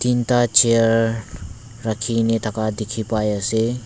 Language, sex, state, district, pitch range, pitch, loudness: Nagamese, male, Nagaland, Dimapur, 110-115 Hz, 115 Hz, -19 LUFS